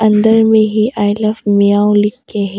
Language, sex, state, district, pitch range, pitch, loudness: Hindi, female, Arunachal Pradesh, Longding, 205-215 Hz, 210 Hz, -12 LUFS